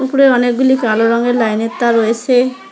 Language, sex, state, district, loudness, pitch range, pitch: Bengali, female, West Bengal, Alipurduar, -13 LUFS, 230-260 Hz, 245 Hz